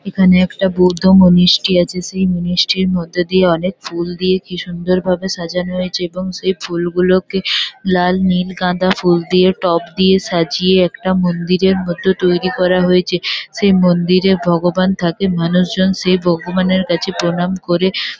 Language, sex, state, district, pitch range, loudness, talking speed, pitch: Bengali, female, West Bengal, Kolkata, 175-185 Hz, -14 LUFS, 145 wpm, 185 Hz